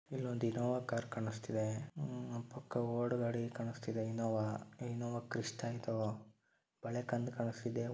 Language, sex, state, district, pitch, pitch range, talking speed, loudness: Kannada, male, Karnataka, Dharwad, 120 Hz, 115-120 Hz, 120 wpm, -40 LUFS